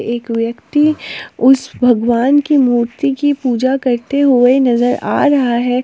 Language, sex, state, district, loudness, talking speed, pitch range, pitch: Hindi, female, Jharkhand, Palamu, -13 LUFS, 145 wpm, 240-280 Hz, 255 Hz